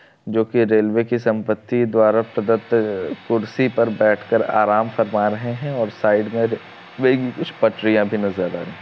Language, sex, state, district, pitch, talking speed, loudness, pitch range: Hindi, male, Bihar, Darbhanga, 110 Hz, 175 wpm, -19 LUFS, 105-115 Hz